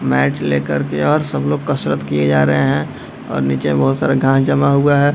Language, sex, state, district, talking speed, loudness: Hindi, male, Bihar, Darbhanga, 235 wpm, -16 LUFS